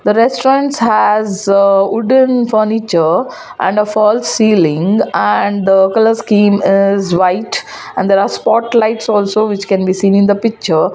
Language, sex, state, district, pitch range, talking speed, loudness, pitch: English, female, Gujarat, Valsad, 195-225 Hz, 150 wpm, -12 LUFS, 205 Hz